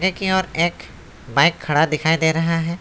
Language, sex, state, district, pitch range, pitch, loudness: Hindi, male, West Bengal, Alipurduar, 160-185 Hz, 165 Hz, -19 LUFS